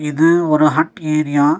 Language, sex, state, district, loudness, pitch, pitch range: Tamil, male, Tamil Nadu, Nilgiris, -15 LUFS, 155 Hz, 150-160 Hz